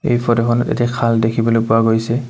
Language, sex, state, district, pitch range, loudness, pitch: Assamese, male, Assam, Kamrup Metropolitan, 115-120 Hz, -16 LUFS, 115 Hz